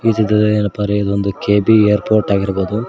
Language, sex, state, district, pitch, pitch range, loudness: Kannada, male, Karnataka, Koppal, 105 Hz, 100-110 Hz, -15 LUFS